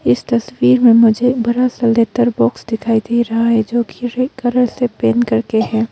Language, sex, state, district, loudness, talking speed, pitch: Hindi, female, Arunachal Pradesh, Longding, -15 LUFS, 205 wpm, 230 Hz